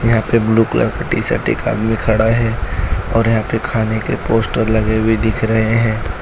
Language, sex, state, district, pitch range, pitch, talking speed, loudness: Hindi, male, Gujarat, Valsad, 110-115 Hz, 110 Hz, 205 wpm, -16 LUFS